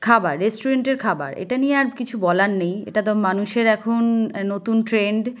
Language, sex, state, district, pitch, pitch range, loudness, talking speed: Bengali, female, West Bengal, Kolkata, 220 Hz, 200-235 Hz, -20 LUFS, 210 wpm